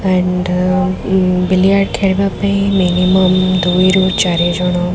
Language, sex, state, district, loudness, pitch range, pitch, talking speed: Odia, female, Odisha, Khordha, -13 LUFS, 180-190 Hz, 185 Hz, 95 wpm